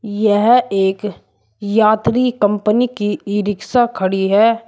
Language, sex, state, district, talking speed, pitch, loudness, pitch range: Hindi, male, Uttar Pradesh, Shamli, 115 wpm, 205 Hz, -15 LUFS, 200-230 Hz